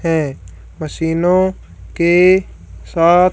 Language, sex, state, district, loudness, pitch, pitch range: Hindi, female, Haryana, Charkhi Dadri, -14 LUFS, 175 Hz, 165-185 Hz